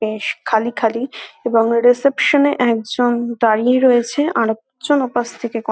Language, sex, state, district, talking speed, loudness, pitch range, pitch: Bengali, female, West Bengal, North 24 Parganas, 155 wpm, -16 LUFS, 225-255 Hz, 235 Hz